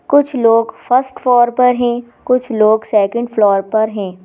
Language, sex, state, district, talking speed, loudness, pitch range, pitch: Hindi, female, Madhya Pradesh, Bhopal, 155 wpm, -14 LUFS, 215-250 Hz, 235 Hz